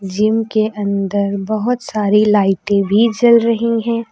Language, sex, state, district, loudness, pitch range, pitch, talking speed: Hindi, female, Uttar Pradesh, Lucknow, -15 LUFS, 200-230 Hz, 215 Hz, 145 wpm